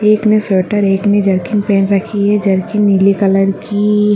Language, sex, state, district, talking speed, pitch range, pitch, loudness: Hindi, female, Bihar, Bhagalpur, 185 wpm, 195-210 Hz, 205 Hz, -13 LUFS